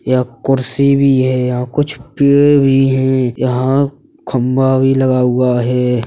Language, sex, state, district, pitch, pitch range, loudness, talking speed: Hindi, male, Uttar Pradesh, Hamirpur, 130 Hz, 125-140 Hz, -13 LUFS, 150 wpm